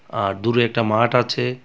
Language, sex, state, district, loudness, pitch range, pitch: Bengali, male, Tripura, West Tripura, -19 LUFS, 110-125 Hz, 120 Hz